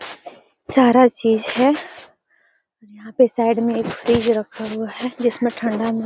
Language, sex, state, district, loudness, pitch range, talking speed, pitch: Hindi, female, Bihar, Gaya, -18 LUFS, 225-245 Hz, 170 wpm, 230 Hz